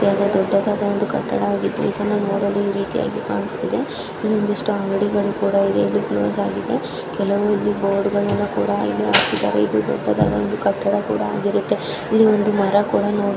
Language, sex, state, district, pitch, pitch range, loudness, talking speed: Kannada, male, Karnataka, Dharwad, 200 Hz, 195-205 Hz, -20 LUFS, 150 wpm